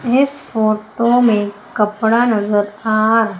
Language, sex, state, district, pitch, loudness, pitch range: Hindi, female, Madhya Pradesh, Umaria, 220 Hz, -16 LUFS, 210-235 Hz